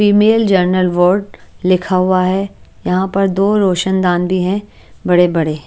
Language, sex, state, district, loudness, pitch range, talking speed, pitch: Hindi, female, Chandigarh, Chandigarh, -14 LUFS, 180-195 Hz, 150 wpm, 185 Hz